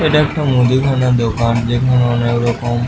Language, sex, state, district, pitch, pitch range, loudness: Bengali, male, West Bengal, Purulia, 125 Hz, 120-130 Hz, -14 LUFS